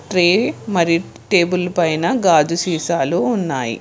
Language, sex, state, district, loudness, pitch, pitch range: Telugu, female, Telangana, Hyderabad, -17 LUFS, 170 Hz, 165-180 Hz